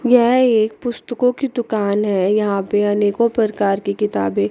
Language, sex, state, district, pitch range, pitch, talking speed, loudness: Hindi, female, Chandigarh, Chandigarh, 200-240 Hz, 210 Hz, 160 wpm, -17 LUFS